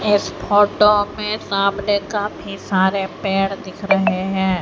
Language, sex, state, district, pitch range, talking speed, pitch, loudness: Hindi, female, Haryana, Jhajjar, 195-205 Hz, 130 wpm, 200 Hz, -18 LUFS